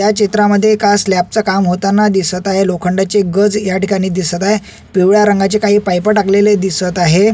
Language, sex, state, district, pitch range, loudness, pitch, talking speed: Marathi, male, Maharashtra, Solapur, 185-210 Hz, -12 LUFS, 195 Hz, 180 wpm